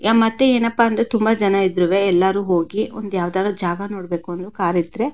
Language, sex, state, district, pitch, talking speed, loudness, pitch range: Kannada, female, Karnataka, Mysore, 195 Hz, 185 wpm, -19 LUFS, 180-225 Hz